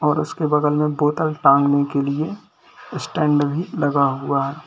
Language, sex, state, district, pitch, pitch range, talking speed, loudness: Hindi, male, Uttar Pradesh, Lalitpur, 150 Hz, 140-155 Hz, 165 wpm, -19 LUFS